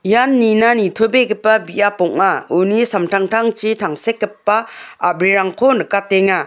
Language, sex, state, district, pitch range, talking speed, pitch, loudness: Garo, female, Meghalaya, West Garo Hills, 195-225 Hz, 95 wpm, 210 Hz, -15 LUFS